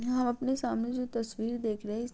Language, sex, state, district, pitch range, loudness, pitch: Hindi, female, Uttar Pradesh, Gorakhpur, 225-250 Hz, -33 LUFS, 240 Hz